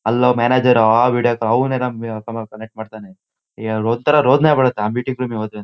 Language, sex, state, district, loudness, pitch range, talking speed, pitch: Kannada, male, Karnataka, Shimoga, -16 LUFS, 110-125 Hz, 115 wpm, 115 Hz